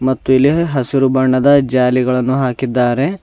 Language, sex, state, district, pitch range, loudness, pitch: Kannada, male, Karnataka, Bidar, 125-135 Hz, -14 LUFS, 130 Hz